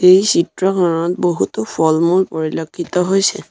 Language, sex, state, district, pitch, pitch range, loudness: Assamese, male, Assam, Sonitpur, 175 Hz, 165-185 Hz, -16 LUFS